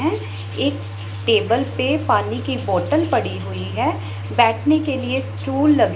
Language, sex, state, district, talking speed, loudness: Hindi, female, Punjab, Pathankot, 150 wpm, -20 LUFS